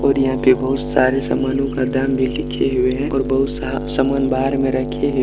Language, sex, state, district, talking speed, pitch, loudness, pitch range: Maithili, male, Bihar, Supaul, 230 wpm, 135 Hz, -18 LUFS, 130-135 Hz